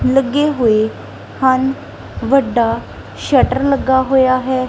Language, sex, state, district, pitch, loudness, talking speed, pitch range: Punjabi, female, Punjab, Kapurthala, 260 Hz, -15 LUFS, 100 wpm, 255-270 Hz